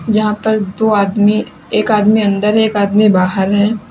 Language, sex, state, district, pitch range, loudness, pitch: Hindi, female, Uttar Pradesh, Lalitpur, 205-215 Hz, -13 LUFS, 210 Hz